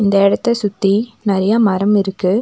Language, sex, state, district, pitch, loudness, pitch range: Tamil, female, Tamil Nadu, Nilgiris, 205 Hz, -15 LUFS, 195-215 Hz